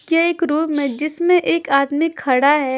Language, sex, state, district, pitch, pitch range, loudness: Hindi, female, Punjab, Kapurthala, 305 Hz, 280-330 Hz, -17 LUFS